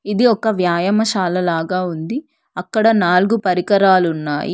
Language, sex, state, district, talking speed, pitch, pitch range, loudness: Telugu, female, Telangana, Hyderabad, 105 wpm, 190 Hz, 180-220 Hz, -16 LUFS